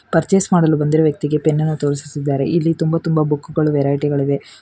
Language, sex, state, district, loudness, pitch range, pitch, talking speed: Kannada, female, Karnataka, Bangalore, -17 LUFS, 145-165 Hz, 155 Hz, 180 wpm